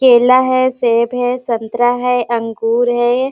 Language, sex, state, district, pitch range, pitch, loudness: Hindi, female, Chhattisgarh, Sarguja, 235-250 Hz, 245 Hz, -14 LUFS